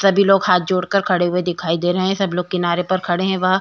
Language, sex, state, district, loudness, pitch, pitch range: Hindi, female, Uttar Pradesh, Jyotiba Phule Nagar, -18 LUFS, 180 Hz, 180-190 Hz